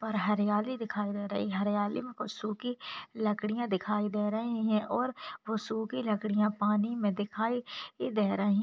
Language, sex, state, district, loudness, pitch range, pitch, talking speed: Hindi, female, Bihar, Begusarai, -32 LUFS, 205-220 Hz, 210 Hz, 175 wpm